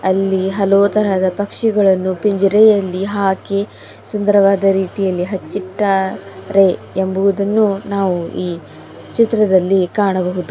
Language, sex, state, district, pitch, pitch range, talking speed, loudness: Kannada, female, Karnataka, Bidar, 195 Hz, 190-200 Hz, 80 wpm, -15 LUFS